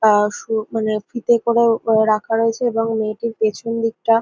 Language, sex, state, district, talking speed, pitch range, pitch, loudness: Bengali, female, West Bengal, North 24 Parganas, 155 wpm, 215-230 Hz, 225 Hz, -19 LUFS